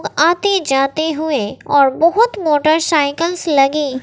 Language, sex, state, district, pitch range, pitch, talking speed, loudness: Hindi, female, Bihar, West Champaran, 285-335 Hz, 310 Hz, 120 wpm, -15 LUFS